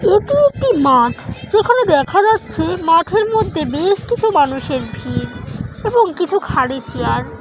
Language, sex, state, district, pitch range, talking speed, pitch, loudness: Bengali, female, West Bengal, Jhargram, 290-440 Hz, 140 wpm, 395 Hz, -15 LUFS